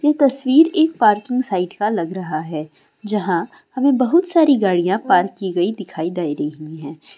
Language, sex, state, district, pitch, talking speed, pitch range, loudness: Hindi, female, Andhra Pradesh, Guntur, 200 Hz, 185 wpm, 175-270 Hz, -18 LUFS